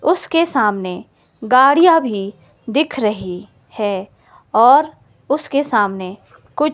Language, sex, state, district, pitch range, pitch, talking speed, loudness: Hindi, female, Himachal Pradesh, Shimla, 200-300 Hz, 250 Hz, 105 wpm, -16 LUFS